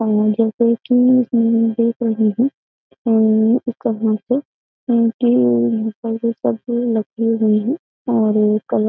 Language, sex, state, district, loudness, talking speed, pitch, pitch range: Hindi, female, Uttar Pradesh, Jyotiba Phule Nagar, -17 LUFS, 95 wpm, 230 Hz, 220-240 Hz